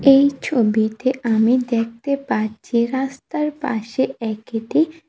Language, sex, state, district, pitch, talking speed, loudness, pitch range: Bengali, female, Tripura, West Tripura, 250 Hz, 95 wpm, -20 LUFS, 225-275 Hz